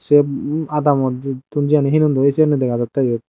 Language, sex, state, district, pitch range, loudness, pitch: Chakma, male, Tripura, Dhalai, 130-150 Hz, -17 LUFS, 140 Hz